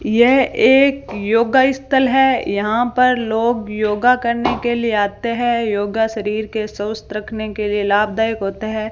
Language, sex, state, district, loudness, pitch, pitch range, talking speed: Hindi, female, Rajasthan, Bikaner, -17 LUFS, 225 Hz, 210-245 Hz, 160 wpm